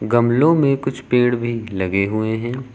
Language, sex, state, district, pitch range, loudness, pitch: Hindi, male, Uttar Pradesh, Lucknow, 110-130 Hz, -18 LUFS, 120 Hz